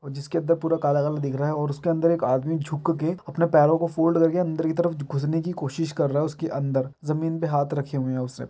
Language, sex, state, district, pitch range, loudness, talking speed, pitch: Maithili, male, Bihar, Araria, 145-165 Hz, -24 LUFS, 270 wpm, 155 Hz